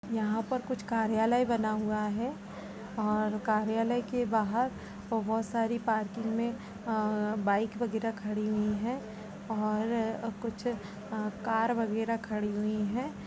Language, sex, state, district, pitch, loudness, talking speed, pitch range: Hindi, female, Uttar Pradesh, Budaun, 220 Hz, -32 LUFS, 130 wpm, 215-230 Hz